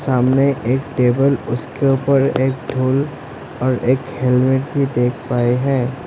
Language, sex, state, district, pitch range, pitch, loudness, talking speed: Hindi, male, Assam, Sonitpur, 125-135 Hz, 130 Hz, -17 LUFS, 140 wpm